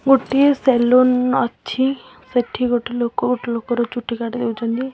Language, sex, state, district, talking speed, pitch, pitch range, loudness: Odia, female, Odisha, Khordha, 145 wpm, 245 Hz, 240-260 Hz, -18 LUFS